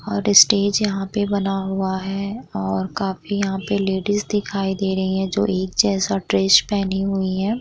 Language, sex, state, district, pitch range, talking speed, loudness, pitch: Hindi, female, Bihar, Vaishali, 190-205 Hz, 180 wpm, -20 LUFS, 195 Hz